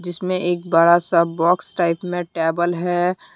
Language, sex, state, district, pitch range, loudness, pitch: Hindi, female, Jharkhand, Deoghar, 170-180 Hz, -19 LUFS, 175 Hz